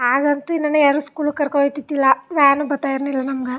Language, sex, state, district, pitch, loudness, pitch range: Kannada, female, Karnataka, Chamarajanagar, 285 Hz, -18 LUFS, 275-295 Hz